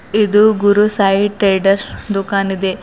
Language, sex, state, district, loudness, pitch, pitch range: Kannada, female, Karnataka, Bidar, -14 LUFS, 200 Hz, 195-210 Hz